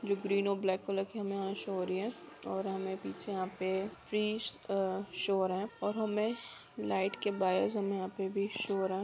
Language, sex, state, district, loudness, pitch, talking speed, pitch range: Hindi, female, Bihar, Purnia, -35 LUFS, 195 Hz, 210 wpm, 190-205 Hz